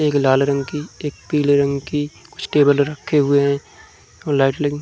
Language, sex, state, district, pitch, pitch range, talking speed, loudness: Hindi, male, Uttar Pradesh, Muzaffarnagar, 145 Hz, 140-150 Hz, 200 wpm, -18 LUFS